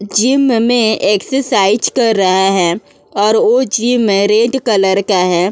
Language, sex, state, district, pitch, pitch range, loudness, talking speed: Hindi, female, Uttar Pradesh, Budaun, 215 Hz, 195-240 Hz, -12 LUFS, 140 wpm